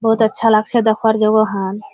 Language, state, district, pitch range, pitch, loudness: Surjapuri, Bihar, Kishanganj, 215-225 Hz, 220 Hz, -15 LUFS